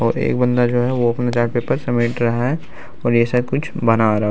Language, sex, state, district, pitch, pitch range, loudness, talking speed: Hindi, male, Bihar, Araria, 120 Hz, 115-125 Hz, -18 LUFS, 250 wpm